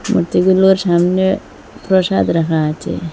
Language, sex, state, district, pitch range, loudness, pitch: Bengali, female, Assam, Hailakandi, 165-190 Hz, -14 LUFS, 185 Hz